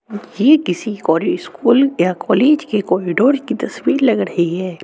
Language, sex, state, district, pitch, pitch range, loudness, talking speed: Hindi, male, Chandigarh, Chandigarh, 220 Hz, 185-270 Hz, -16 LUFS, 160 wpm